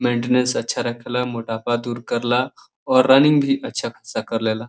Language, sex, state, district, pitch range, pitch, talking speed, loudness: Bhojpuri, male, Uttar Pradesh, Deoria, 120-125 Hz, 120 Hz, 165 wpm, -20 LUFS